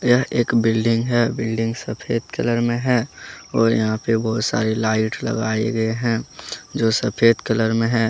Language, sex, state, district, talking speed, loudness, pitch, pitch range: Hindi, male, Jharkhand, Deoghar, 170 wpm, -20 LUFS, 115 Hz, 110-120 Hz